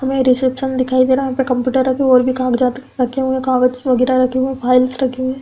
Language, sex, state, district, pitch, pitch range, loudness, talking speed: Hindi, female, Uttar Pradesh, Hamirpur, 255 Hz, 255-260 Hz, -16 LUFS, 290 wpm